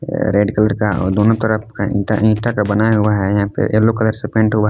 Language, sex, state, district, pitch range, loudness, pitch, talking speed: Hindi, male, Jharkhand, Palamu, 105-110 Hz, -16 LUFS, 105 Hz, 240 wpm